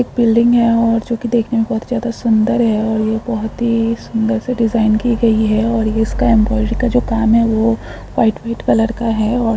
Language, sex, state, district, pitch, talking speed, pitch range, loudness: Hindi, female, Jharkhand, Jamtara, 230 Hz, 230 wpm, 220-235 Hz, -15 LUFS